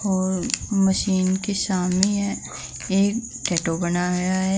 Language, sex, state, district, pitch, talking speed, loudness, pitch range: Hindi, female, Uttar Pradesh, Saharanpur, 190 Hz, 120 wpm, -22 LUFS, 180-200 Hz